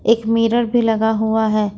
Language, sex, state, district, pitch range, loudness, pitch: Hindi, female, Jharkhand, Ranchi, 220-230 Hz, -17 LUFS, 225 Hz